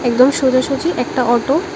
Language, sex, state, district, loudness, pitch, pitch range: Bengali, female, Tripura, West Tripura, -15 LUFS, 260 Hz, 250-285 Hz